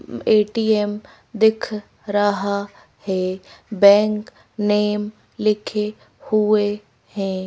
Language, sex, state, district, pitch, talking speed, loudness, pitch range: Hindi, female, Madhya Pradesh, Bhopal, 210 Hz, 70 wpm, -20 LUFS, 200-215 Hz